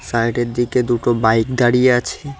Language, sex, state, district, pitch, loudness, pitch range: Bengali, male, West Bengal, Cooch Behar, 120 Hz, -16 LUFS, 115-125 Hz